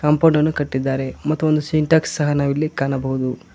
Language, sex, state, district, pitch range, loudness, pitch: Kannada, male, Karnataka, Koppal, 135-155 Hz, -19 LUFS, 150 Hz